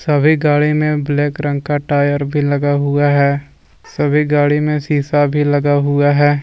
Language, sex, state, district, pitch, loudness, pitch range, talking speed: Hindi, male, Jharkhand, Deoghar, 145 Hz, -15 LUFS, 145-150 Hz, 175 wpm